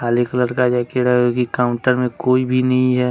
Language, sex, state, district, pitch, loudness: Hindi, male, Jharkhand, Ranchi, 125 Hz, -17 LUFS